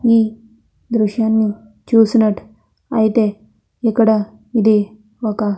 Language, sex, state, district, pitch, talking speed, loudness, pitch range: Telugu, female, Andhra Pradesh, Anantapur, 220 Hz, 75 wpm, -16 LUFS, 215-225 Hz